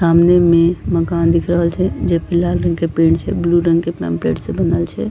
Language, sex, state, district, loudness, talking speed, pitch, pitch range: Angika, female, Bihar, Bhagalpur, -15 LUFS, 260 wpm, 170 Hz, 165-170 Hz